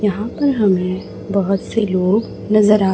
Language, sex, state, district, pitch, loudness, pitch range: Hindi, male, Chhattisgarh, Raipur, 205 Hz, -17 LUFS, 195-215 Hz